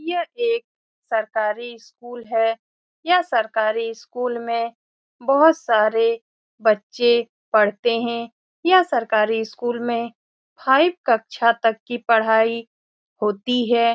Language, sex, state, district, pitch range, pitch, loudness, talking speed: Hindi, female, Bihar, Saran, 225-250 Hz, 235 Hz, -20 LUFS, 110 wpm